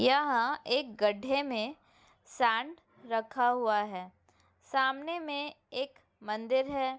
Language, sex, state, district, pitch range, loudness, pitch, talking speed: Hindi, female, Uttar Pradesh, Hamirpur, 225-280 Hz, -31 LUFS, 260 Hz, 110 wpm